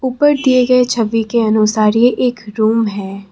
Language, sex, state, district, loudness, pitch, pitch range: Hindi, female, Assam, Kamrup Metropolitan, -14 LUFS, 225 Hz, 215-250 Hz